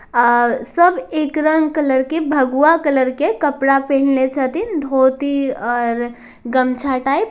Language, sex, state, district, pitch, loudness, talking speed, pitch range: Hindi, female, Bihar, Darbhanga, 275 Hz, -16 LUFS, 140 wpm, 255-300 Hz